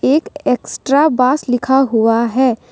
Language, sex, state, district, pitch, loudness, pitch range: Hindi, female, Jharkhand, Deoghar, 260 Hz, -14 LUFS, 245-275 Hz